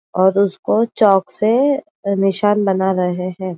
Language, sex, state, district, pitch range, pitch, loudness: Hindi, female, Maharashtra, Aurangabad, 185-215 Hz, 195 Hz, -16 LUFS